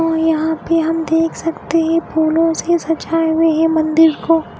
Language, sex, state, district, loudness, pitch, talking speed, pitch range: Hindi, female, Odisha, Khordha, -15 LUFS, 325 Hz, 195 wpm, 320-330 Hz